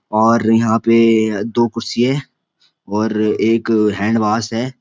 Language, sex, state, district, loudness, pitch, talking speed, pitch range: Hindi, male, Uttarakhand, Uttarkashi, -16 LUFS, 115 Hz, 135 wpm, 110-115 Hz